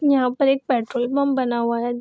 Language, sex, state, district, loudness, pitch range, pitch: Hindi, female, Bihar, Madhepura, -21 LUFS, 240-275 Hz, 250 Hz